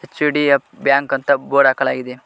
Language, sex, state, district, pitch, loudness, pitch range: Kannada, male, Karnataka, Koppal, 140 Hz, -16 LUFS, 135-145 Hz